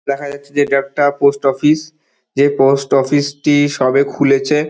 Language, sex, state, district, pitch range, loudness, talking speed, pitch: Bengali, male, West Bengal, Dakshin Dinajpur, 140-145 Hz, -14 LUFS, 125 wpm, 140 Hz